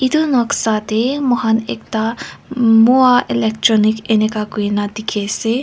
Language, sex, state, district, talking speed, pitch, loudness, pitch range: Nagamese, female, Nagaland, Kohima, 115 wpm, 225 Hz, -15 LUFS, 215-245 Hz